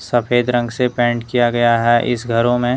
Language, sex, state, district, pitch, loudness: Hindi, male, Jharkhand, Deoghar, 120 Hz, -16 LUFS